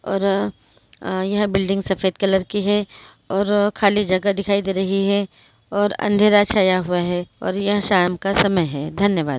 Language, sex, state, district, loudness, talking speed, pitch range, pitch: Hindi, female, Maharashtra, Dhule, -19 LUFS, 180 wpm, 185-205 Hz, 195 Hz